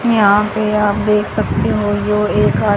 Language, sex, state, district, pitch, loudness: Hindi, female, Haryana, Charkhi Dadri, 205 Hz, -15 LUFS